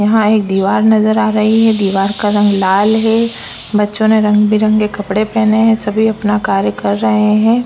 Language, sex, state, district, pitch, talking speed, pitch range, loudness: Hindi, female, Chhattisgarh, Korba, 215 Hz, 190 wpm, 205-220 Hz, -12 LUFS